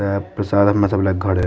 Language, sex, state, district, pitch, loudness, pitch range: Maithili, male, Bihar, Madhepura, 100 Hz, -18 LUFS, 95-100 Hz